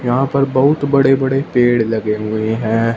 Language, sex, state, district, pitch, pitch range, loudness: Hindi, male, Punjab, Fazilka, 125 Hz, 110-135 Hz, -15 LUFS